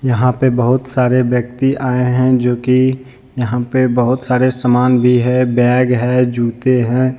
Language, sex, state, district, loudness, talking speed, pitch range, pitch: Hindi, male, Jharkhand, Deoghar, -14 LUFS, 160 wpm, 125-130 Hz, 125 Hz